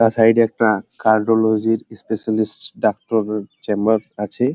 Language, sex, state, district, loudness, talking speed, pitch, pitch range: Bengali, male, West Bengal, Jalpaiguri, -19 LUFS, 130 wpm, 110 Hz, 110-115 Hz